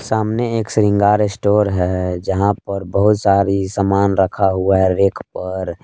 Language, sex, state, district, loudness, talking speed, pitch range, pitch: Hindi, male, Jharkhand, Palamu, -16 LUFS, 155 wpm, 95-105 Hz, 100 Hz